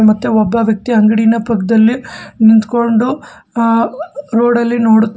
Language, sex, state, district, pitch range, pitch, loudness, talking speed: Kannada, male, Karnataka, Bangalore, 220-235 Hz, 230 Hz, -12 LUFS, 130 wpm